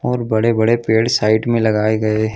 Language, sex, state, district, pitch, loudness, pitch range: Hindi, male, Chhattisgarh, Bilaspur, 110 Hz, -16 LUFS, 110-115 Hz